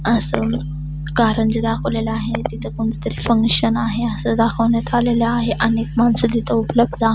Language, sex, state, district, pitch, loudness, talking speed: Marathi, female, Maharashtra, Nagpur, 220 Hz, -18 LUFS, 150 wpm